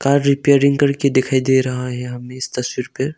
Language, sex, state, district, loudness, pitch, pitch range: Hindi, male, Arunachal Pradesh, Longding, -17 LUFS, 130 Hz, 125-140 Hz